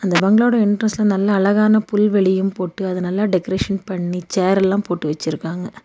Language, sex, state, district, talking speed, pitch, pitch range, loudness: Tamil, female, Tamil Nadu, Nilgiris, 155 wpm, 195 Hz, 180-205 Hz, -18 LUFS